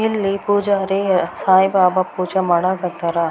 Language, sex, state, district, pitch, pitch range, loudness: Kannada, female, Karnataka, Raichur, 190 Hz, 180-195 Hz, -17 LUFS